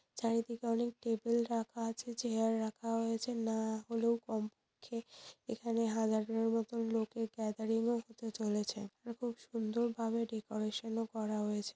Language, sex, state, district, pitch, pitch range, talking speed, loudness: Bengali, female, West Bengal, Purulia, 225 Hz, 220-230 Hz, 150 wpm, -37 LUFS